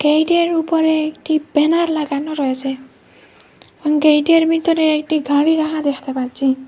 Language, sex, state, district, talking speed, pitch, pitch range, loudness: Bengali, female, Assam, Hailakandi, 135 wpm, 305 Hz, 285-320 Hz, -16 LUFS